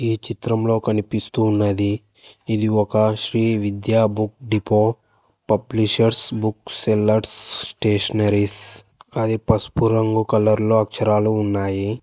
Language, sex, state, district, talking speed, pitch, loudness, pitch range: Telugu, male, Telangana, Hyderabad, 95 wpm, 110 Hz, -19 LUFS, 105-110 Hz